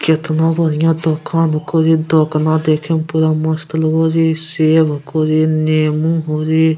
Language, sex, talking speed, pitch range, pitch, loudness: Angika, male, 160 wpm, 155-160 Hz, 160 Hz, -15 LUFS